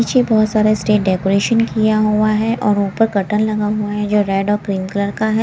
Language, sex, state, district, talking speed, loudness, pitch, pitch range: Hindi, female, Himachal Pradesh, Shimla, 230 wpm, -16 LUFS, 210 Hz, 200-220 Hz